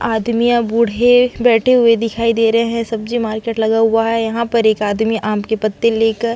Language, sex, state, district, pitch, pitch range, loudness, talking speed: Hindi, female, Chhattisgarh, Sukma, 230 Hz, 225-235 Hz, -15 LUFS, 205 wpm